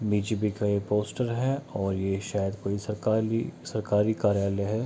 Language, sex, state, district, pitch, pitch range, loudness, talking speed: Hindi, male, Bihar, Kishanganj, 105 Hz, 100-110 Hz, -28 LUFS, 175 wpm